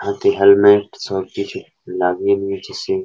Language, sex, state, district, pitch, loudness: Bengali, male, West Bengal, Paschim Medinipur, 100 Hz, -16 LUFS